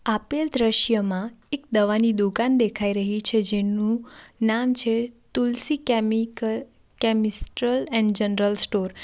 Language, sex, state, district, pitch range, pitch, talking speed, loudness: Gujarati, female, Gujarat, Valsad, 210-235 Hz, 225 Hz, 120 wpm, -21 LUFS